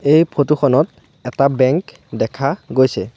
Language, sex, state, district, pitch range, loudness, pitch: Assamese, male, Assam, Sonitpur, 130-150 Hz, -16 LUFS, 140 Hz